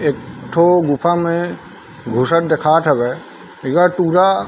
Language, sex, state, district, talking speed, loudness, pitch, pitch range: Chhattisgarhi, male, Chhattisgarh, Bilaspur, 135 wpm, -15 LUFS, 165 Hz, 145-175 Hz